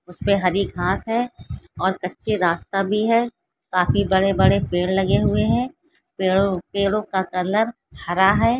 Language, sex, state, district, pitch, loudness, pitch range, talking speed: Hindi, female, Bihar, Sitamarhi, 195 Hz, -21 LUFS, 185-215 Hz, 145 wpm